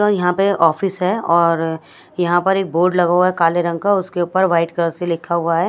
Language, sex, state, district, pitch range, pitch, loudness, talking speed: Hindi, female, Bihar, West Champaran, 170-185 Hz, 175 Hz, -17 LUFS, 240 wpm